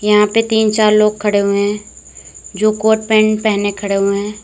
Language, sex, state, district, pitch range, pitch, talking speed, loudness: Hindi, female, Uttar Pradesh, Lalitpur, 205-215 Hz, 210 Hz, 200 wpm, -14 LUFS